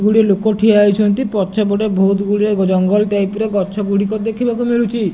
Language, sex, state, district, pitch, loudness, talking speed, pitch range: Odia, male, Odisha, Nuapada, 210 Hz, -15 LUFS, 175 wpm, 200-220 Hz